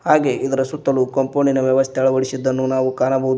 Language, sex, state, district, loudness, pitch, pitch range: Kannada, male, Karnataka, Koppal, -18 LUFS, 130 Hz, 130-135 Hz